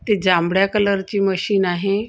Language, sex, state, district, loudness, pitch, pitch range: Marathi, female, Maharashtra, Gondia, -18 LUFS, 195 Hz, 185-205 Hz